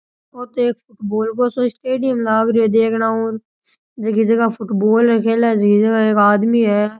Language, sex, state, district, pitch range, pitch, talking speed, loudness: Rajasthani, male, Rajasthan, Nagaur, 220-235 Hz, 225 Hz, 170 wpm, -16 LUFS